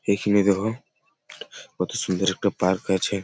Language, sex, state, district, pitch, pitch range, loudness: Bengali, male, West Bengal, Malda, 100 Hz, 95-105 Hz, -23 LUFS